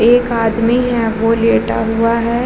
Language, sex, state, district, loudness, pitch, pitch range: Hindi, female, Bihar, Vaishali, -14 LUFS, 230 Hz, 225-235 Hz